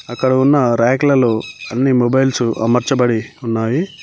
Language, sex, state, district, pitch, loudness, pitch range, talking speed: Telugu, male, Telangana, Mahabubabad, 125 Hz, -15 LUFS, 115-135 Hz, 105 wpm